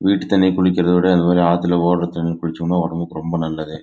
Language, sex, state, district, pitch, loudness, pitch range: Tamil, male, Karnataka, Chamarajanagar, 85 Hz, -17 LUFS, 85-90 Hz